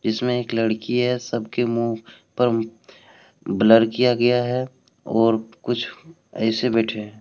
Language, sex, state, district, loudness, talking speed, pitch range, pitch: Hindi, male, Jharkhand, Deoghar, -21 LUFS, 125 wpm, 110-125 Hz, 115 Hz